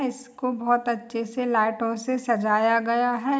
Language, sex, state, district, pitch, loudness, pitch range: Hindi, female, Bihar, Saharsa, 235 Hz, -24 LUFS, 230-250 Hz